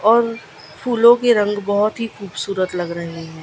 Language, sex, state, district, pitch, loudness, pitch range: Hindi, female, Gujarat, Gandhinagar, 205 Hz, -18 LUFS, 180-230 Hz